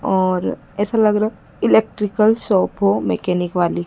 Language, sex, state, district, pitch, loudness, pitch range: Hindi, female, Madhya Pradesh, Dhar, 200 Hz, -18 LUFS, 180-215 Hz